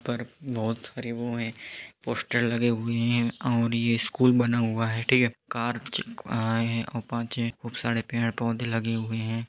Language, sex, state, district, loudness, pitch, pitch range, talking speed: Hindi, male, Uttar Pradesh, Hamirpur, -27 LUFS, 115 Hz, 115-120 Hz, 190 wpm